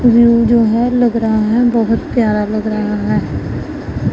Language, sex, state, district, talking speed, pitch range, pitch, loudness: Hindi, female, Punjab, Pathankot, 160 wpm, 215-235 Hz, 230 Hz, -14 LUFS